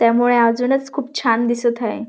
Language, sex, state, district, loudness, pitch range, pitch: Marathi, female, Maharashtra, Dhule, -18 LUFS, 230-255 Hz, 240 Hz